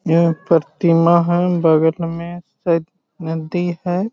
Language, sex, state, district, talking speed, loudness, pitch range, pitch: Magahi, male, Bihar, Jahanabad, 115 wpm, -17 LUFS, 165-175 Hz, 170 Hz